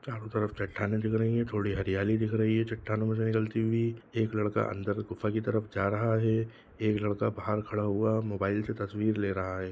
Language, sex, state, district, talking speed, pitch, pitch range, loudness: Hindi, male, Bihar, Jahanabad, 230 wpm, 110 Hz, 105-110 Hz, -30 LUFS